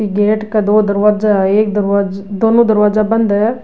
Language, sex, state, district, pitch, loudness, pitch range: Rajasthani, female, Rajasthan, Nagaur, 210 Hz, -13 LUFS, 205-215 Hz